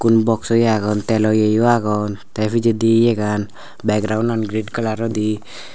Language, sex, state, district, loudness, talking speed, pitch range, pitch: Chakma, male, Tripura, Unakoti, -18 LUFS, 165 wpm, 105-115 Hz, 110 Hz